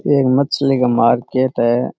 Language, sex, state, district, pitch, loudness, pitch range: Rajasthani, male, Rajasthan, Churu, 130 Hz, -15 LUFS, 120-140 Hz